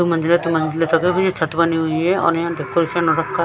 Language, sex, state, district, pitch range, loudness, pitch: Hindi, female, Himachal Pradesh, Shimla, 160-170 Hz, -18 LUFS, 165 Hz